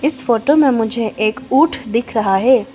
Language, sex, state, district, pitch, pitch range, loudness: Hindi, female, Arunachal Pradesh, Longding, 235 Hz, 220-270 Hz, -15 LUFS